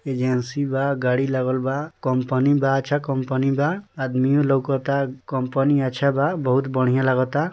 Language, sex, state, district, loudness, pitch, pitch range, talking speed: Bhojpuri, male, Bihar, East Champaran, -21 LUFS, 135 Hz, 130-140 Hz, 145 wpm